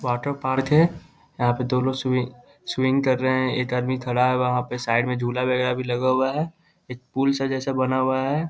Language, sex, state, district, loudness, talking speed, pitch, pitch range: Hindi, male, Bihar, Muzaffarpur, -23 LUFS, 235 wpm, 130 Hz, 125-135 Hz